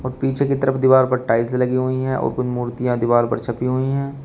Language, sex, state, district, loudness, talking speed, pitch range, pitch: Hindi, male, Uttar Pradesh, Shamli, -19 LUFS, 255 wpm, 125-130 Hz, 130 Hz